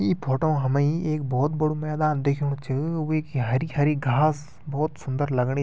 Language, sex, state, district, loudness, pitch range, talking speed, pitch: Garhwali, male, Uttarakhand, Tehri Garhwal, -25 LUFS, 135-155 Hz, 180 wpm, 145 Hz